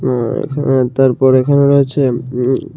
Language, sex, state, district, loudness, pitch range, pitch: Bengali, male, Tripura, Unakoti, -13 LUFS, 125-140 Hz, 130 Hz